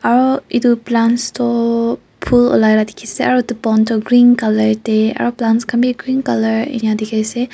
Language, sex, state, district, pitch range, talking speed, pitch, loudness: Nagamese, female, Nagaland, Kohima, 220-245 Hz, 200 wpm, 235 Hz, -15 LUFS